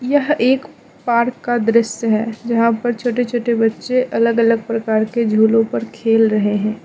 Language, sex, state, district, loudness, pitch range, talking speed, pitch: Hindi, female, Mizoram, Aizawl, -17 LUFS, 225-240 Hz, 175 wpm, 230 Hz